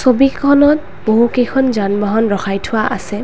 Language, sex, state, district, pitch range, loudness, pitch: Assamese, female, Assam, Kamrup Metropolitan, 205-265 Hz, -14 LUFS, 235 Hz